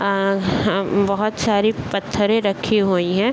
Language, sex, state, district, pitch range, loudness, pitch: Hindi, male, Bihar, Bhagalpur, 195-210 Hz, -19 LUFS, 200 Hz